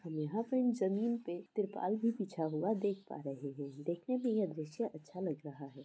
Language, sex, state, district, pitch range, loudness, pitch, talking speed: Hindi, female, West Bengal, Jalpaiguri, 155-220 Hz, -38 LUFS, 185 Hz, 215 wpm